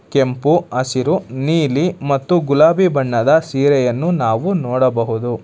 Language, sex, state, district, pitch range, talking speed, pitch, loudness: Kannada, male, Karnataka, Bangalore, 130-165 Hz, 100 wpm, 140 Hz, -16 LUFS